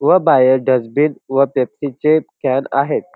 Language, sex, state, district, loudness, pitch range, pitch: Marathi, male, Maharashtra, Dhule, -16 LUFS, 130-150 Hz, 140 Hz